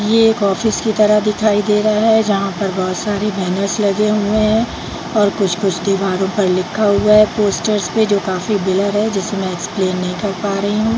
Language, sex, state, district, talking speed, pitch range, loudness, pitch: Hindi, female, Bihar, Jahanabad, 205 wpm, 195-215 Hz, -16 LUFS, 205 Hz